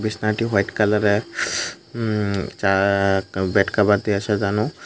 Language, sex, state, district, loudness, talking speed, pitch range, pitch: Bengali, male, Tripura, Unakoti, -20 LUFS, 100 wpm, 100-110 Hz, 105 Hz